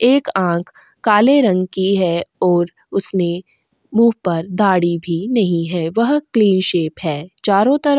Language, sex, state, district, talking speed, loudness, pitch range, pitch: Hindi, female, Goa, North and South Goa, 160 wpm, -16 LUFS, 175-230 Hz, 190 Hz